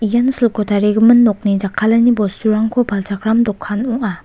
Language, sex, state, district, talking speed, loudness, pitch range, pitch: Garo, female, Meghalaya, West Garo Hills, 125 wpm, -15 LUFS, 205-235 Hz, 220 Hz